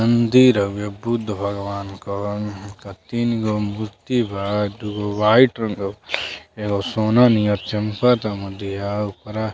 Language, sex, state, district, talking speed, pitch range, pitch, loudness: Bhojpuri, male, Uttar Pradesh, Deoria, 130 wpm, 100-110 Hz, 105 Hz, -20 LUFS